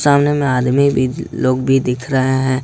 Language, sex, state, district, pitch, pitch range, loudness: Hindi, male, Jharkhand, Ranchi, 130 Hz, 130-140 Hz, -16 LUFS